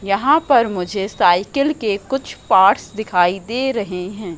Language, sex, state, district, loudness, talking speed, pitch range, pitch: Hindi, female, Madhya Pradesh, Katni, -17 LUFS, 150 wpm, 185-260 Hz, 205 Hz